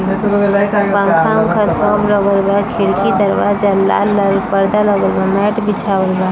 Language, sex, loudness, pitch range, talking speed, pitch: Bhojpuri, female, -13 LUFS, 195-210 Hz, 125 wpm, 200 Hz